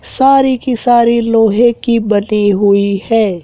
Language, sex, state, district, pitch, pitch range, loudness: Hindi, male, Madhya Pradesh, Dhar, 225 Hz, 205-240 Hz, -11 LUFS